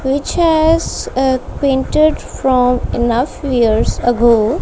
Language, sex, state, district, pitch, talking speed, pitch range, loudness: English, female, Punjab, Kapurthala, 265 Hz, 105 wpm, 240-285 Hz, -14 LUFS